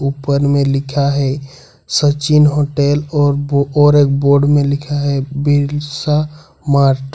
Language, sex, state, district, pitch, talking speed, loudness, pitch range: Hindi, male, Jharkhand, Ranchi, 145 Hz, 125 wpm, -14 LUFS, 140-145 Hz